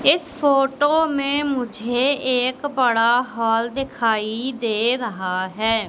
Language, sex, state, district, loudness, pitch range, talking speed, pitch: Hindi, female, Madhya Pradesh, Katni, -20 LUFS, 225-275 Hz, 110 wpm, 250 Hz